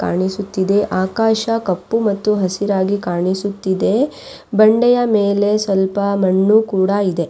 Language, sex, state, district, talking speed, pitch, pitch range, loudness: Kannada, female, Karnataka, Raichur, 100 wpm, 200 Hz, 190-215 Hz, -16 LUFS